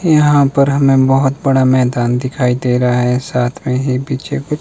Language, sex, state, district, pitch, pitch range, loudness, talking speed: Hindi, male, Himachal Pradesh, Shimla, 130 Hz, 125-140 Hz, -14 LUFS, 195 wpm